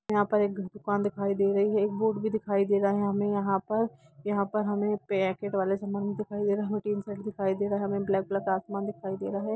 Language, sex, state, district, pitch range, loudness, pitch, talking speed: Hindi, female, Jharkhand, Jamtara, 195-210 Hz, -29 LUFS, 200 Hz, 225 wpm